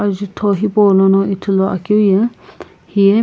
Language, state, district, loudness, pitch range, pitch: Sumi, Nagaland, Kohima, -14 LUFS, 195-210 Hz, 200 Hz